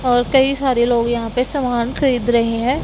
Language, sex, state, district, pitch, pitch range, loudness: Hindi, female, Punjab, Pathankot, 245 Hz, 235-265 Hz, -17 LUFS